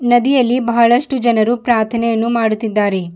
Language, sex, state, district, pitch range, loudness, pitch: Kannada, female, Karnataka, Bidar, 220-240 Hz, -14 LUFS, 235 Hz